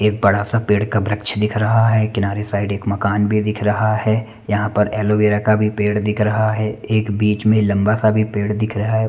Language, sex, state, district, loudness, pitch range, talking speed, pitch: Hindi, male, Chandigarh, Chandigarh, -18 LUFS, 105-110 Hz, 235 wpm, 105 Hz